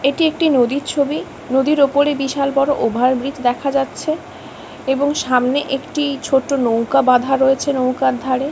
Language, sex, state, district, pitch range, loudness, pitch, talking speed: Bengali, female, West Bengal, Kolkata, 260-285 Hz, -17 LUFS, 275 Hz, 140 wpm